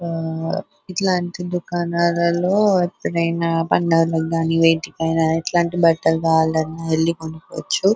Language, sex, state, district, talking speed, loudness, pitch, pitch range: Telugu, female, Telangana, Nalgonda, 90 wpm, -19 LUFS, 165 Hz, 165-175 Hz